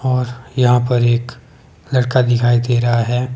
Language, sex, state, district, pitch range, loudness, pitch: Hindi, male, Himachal Pradesh, Shimla, 120-125 Hz, -16 LUFS, 125 Hz